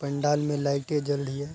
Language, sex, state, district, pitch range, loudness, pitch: Hindi, male, Bihar, Araria, 140-145 Hz, -27 LUFS, 145 Hz